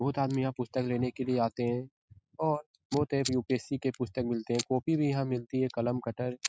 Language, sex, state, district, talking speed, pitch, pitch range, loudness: Hindi, male, Bihar, Jahanabad, 230 wpm, 130 Hz, 120-135 Hz, -32 LUFS